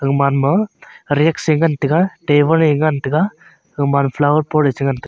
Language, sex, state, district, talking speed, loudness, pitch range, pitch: Wancho, male, Arunachal Pradesh, Longding, 175 wpm, -16 LUFS, 140-160 Hz, 150 Hz